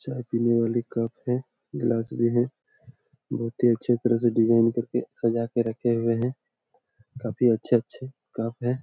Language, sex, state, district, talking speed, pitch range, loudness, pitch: Hindi, male, Jharkhand, Jamtara, 190 wpm, 115-125 Hz, -25 LUFS, 120 Hz